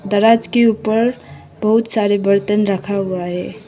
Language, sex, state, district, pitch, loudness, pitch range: Hindi, female, Sikkim, Gangtok, 210 Hz, -16 LUFS, 200-225 Hz